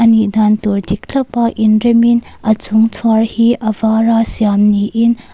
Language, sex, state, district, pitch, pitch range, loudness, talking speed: Mizo, female, Mizoram, Aizawl, 220 Hz, 215-235 Hz, -12 LUFS, 170 wpm